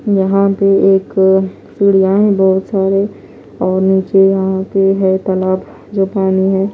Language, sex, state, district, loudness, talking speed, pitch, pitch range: Hindi, female, Odisha, Nuapada, -13 LUFS, 140 wpm, 195 Hz, 190-195 Hz